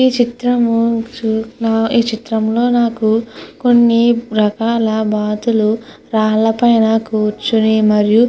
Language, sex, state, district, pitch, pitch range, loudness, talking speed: Telugu, female, Andhra Pradesh, Krishna, 225 Hz, 220-235 Hz, -14 LUFS, 95 wpm